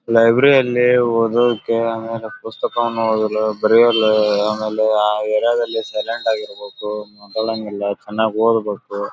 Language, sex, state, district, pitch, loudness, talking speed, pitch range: Kannada, male, Karnataka, Belgaum, 110 Hz, -17 LUFS, 110 wpm, 105-115 Hz